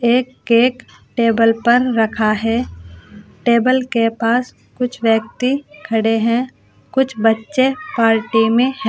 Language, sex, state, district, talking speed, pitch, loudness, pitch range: Hindi, female, Uttar Pradesh, Saharanpur, 120 wpm, 235 Hz, -16 LUFS, 225-255 Hz